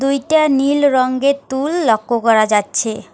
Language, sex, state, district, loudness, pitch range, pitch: Bengali, female, West Bengal, Alipurduar, -15 LUFS, 225-280 Hz, 270 Hz